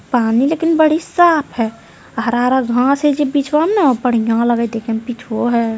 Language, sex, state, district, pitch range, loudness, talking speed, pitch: Hindi, female, Bihar, Jamui, 230-295 Hz, -15 LUFS, 220 wpm, 250 Hz